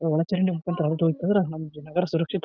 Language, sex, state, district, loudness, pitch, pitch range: Kannada, male, Karnataka, Bijapur, -25 LUFS, 165 Hz, 160-180 Hz